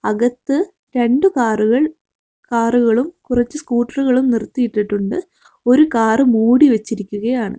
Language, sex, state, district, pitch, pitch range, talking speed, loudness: Malayalam, female, Kerala, Kozhikode, 245 Hz, 230-280 Hz, 85 wpm, -16 LUFS